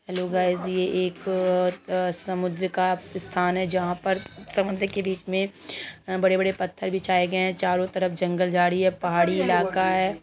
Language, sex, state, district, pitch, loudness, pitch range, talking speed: Hindi, female, Bihar, Sitamarhi, 185 Hz, -25 LUFS, 180-190 Hz, 160 wpm